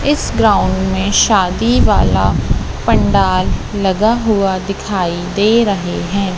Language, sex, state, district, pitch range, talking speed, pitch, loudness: Hindi, female, Madhya Pradesh, Katni, 185-215 Hz, 115 wpm, 195 Hz, -14 LUFS